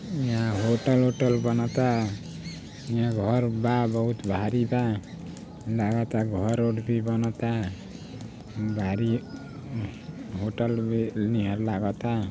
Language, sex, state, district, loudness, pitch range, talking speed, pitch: Bhojpuri, male, Bihar, Gopalganj, -27 LUFS, 110-120 Hz, 125 wpm, 115 Hz